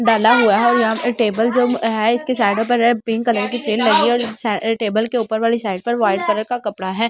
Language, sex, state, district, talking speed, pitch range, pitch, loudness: Hindi, female, Delhi, New Delhi, 260 wpm, 215-235 Hz, 225 Hz, -17 LUFS